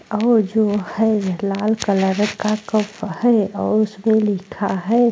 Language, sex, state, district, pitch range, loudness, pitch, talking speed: Hindi, female, Uttar Pradesh, Jalaun, 200-220 Hz, -19 LUFS, 215 Hz, 140 wpm